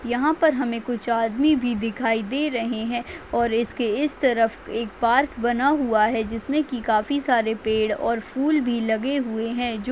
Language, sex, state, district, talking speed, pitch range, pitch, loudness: Hindi, female, Chhattisgarh, Bastar, 205 wpm, 225-265 Hz, 235 Hz, -23 LUFS